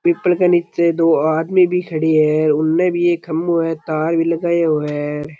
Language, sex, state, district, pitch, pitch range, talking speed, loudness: Rajasthani, male, Rajasthan, Churu, 165 Hz, 155-175 Hz, 190 wpm, -16 LUFS